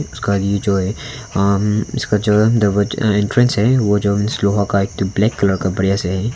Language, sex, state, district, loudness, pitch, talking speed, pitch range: Hindi, male, Arunachal Pradesh, Longding, -16 LUFS, 100 Hz, 225 wpm, 100-105 Hz